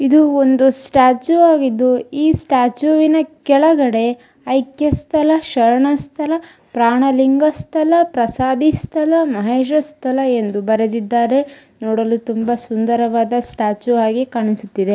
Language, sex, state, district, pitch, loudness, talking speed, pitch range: Kannada, female, Karnataka, Dharwad, 260 Hz, -15 LUFS, 100 wpm, 235-300 Hz